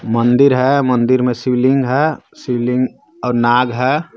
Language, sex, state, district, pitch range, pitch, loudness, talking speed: Hindi, male, Jharkhand, Garhwa, 125-135 Hz, 125 Hz, -15 LUFS, 145 wpm